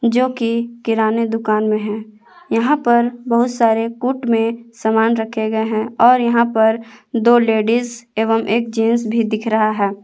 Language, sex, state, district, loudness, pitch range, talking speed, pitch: Hindi, female, Jharkhand, Palamu, -17 LUFS, 220-235 Hz, 165 wpm, 230 Hz